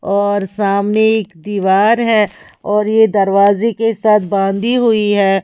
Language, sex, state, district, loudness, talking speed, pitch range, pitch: Hindi, female, Chhattisgarh, Raipur, -14 LUFS, 145 wpm, 200-220 Hz, 205 Hz